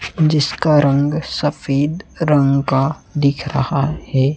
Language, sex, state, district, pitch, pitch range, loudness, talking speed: Hindi, male, Chhattisgarh, Raipur, 145 Hz, 140-155 Hz, -17 LUFS, 110 wpm